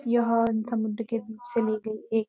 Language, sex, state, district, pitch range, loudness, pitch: Hindi, female, Uttarakhand, Uttarkashi, 220-230 Hz, -28 LUFS, 225 Hz